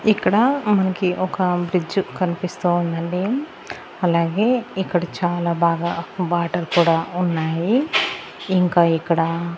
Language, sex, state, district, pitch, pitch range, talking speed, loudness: Telugu, female, Andhra Pradesh, Annamaya, 175 Hz, 170-190 Hz, 95 wpm, -20 LUFS